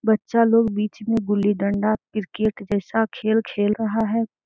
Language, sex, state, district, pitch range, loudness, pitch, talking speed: Hindi, female, Jharkhand, Sahebganj, 205-225 Hz, -22 LUFS, 220 Hz, 150 wpm